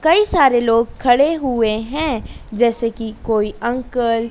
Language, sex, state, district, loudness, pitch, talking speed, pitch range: Hindi, female, Madhya Pradesh, Dhar, -17 LUFS, 240 Hz, 155 wpm, 230-270 Hz